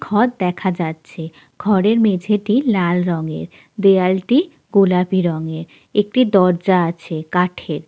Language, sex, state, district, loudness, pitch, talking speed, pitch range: Bengali, female, West Bengal, Jalpaiguri, -17 LUFS, 185 Hz, 115 wpm, 165-205 Hz